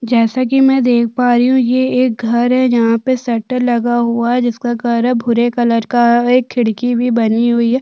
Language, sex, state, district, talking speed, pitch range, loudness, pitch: Hindi, female, Chhattisgarh, Sukma, 225 wpm, 235-250 Hz, -13 LUFS, 240 Hz